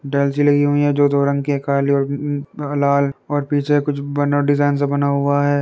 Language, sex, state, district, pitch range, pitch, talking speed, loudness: Hindi, male, Uttar Pradesh, Varanasi, 140-145 Hz, 145 Hz, 215 wpm, -18 LUFS